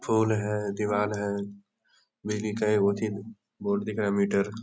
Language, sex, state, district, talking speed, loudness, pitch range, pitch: Hindi, male, Bihar, Darbhanga, 170 wpm, -28 LUFS, 100-105 Hz, 105 Hz